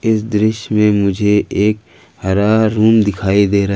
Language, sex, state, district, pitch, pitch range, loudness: Hindi, male, Jharkhand, Ranchi, 105 Hz, 100-110 Hz, -14 LUFS